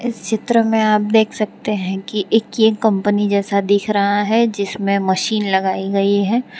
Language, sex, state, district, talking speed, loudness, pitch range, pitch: Hindi, female, Gujarat, Valsad, 180 wpm, -17 LUFS, 200-220 Hz, 205 Hz